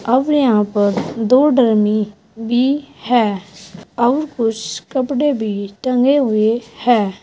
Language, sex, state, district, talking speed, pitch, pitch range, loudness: Hindi, female, Uttar Pradesh, Saharanpur, 115 wpm, 230 Hz, 210-255 Hz, -16 LUFS